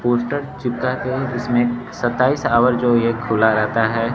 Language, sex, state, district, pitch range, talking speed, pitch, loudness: Hindi, male, Bihar, Kaimur, 115-125 Hz, 160 wpm, 120 Hz, -19 LUFS